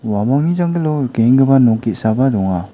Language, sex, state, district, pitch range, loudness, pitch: Garo, male, Meghalaya, West Garo Hills, 110-135 Hz, -14 LUFS, 125 Hz